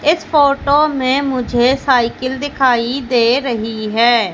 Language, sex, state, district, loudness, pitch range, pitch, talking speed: Hindi, female, Madhya Pradesh, Katni, -15 LUFS, 240-280 Hz, 255 Hz, 125 wpm